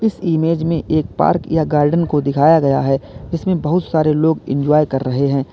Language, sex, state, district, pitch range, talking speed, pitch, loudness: Hindi, male, Uttar Pradesh, Lalitpur, 140-165 Hz, 205 wpm, 155 Hz, -16 LUFS